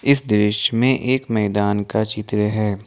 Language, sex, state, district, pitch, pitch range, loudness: Hindi, male, Jharkhand, Ranchi, 105 Hz, 105-125 Hz, -19 LUFS